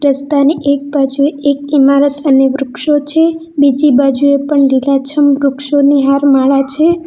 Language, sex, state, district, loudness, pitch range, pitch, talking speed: Gujarati, female, Gujarat, Valsad, -11 LUFS, 275-290 Hz, 280 Hz, 135 wpm